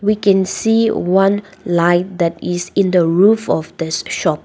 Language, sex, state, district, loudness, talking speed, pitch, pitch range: English, female, Nagaland, Dimapur, -15 LUFS, 175 wpm, 190 Hz, 175-205 Hz